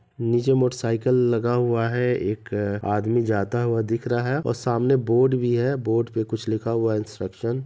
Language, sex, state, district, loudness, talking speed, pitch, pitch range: Hindi, male, Bihar, Madhepura, -23 LUFS, 210 wpm, 115 Hz, 110-125 Hz